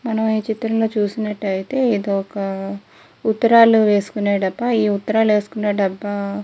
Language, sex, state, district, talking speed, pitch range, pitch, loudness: Telugu, female, Andhra Pradesh, Guntur, 130 wpm, 200-220 Hz, 210 Hz, -18 LUFS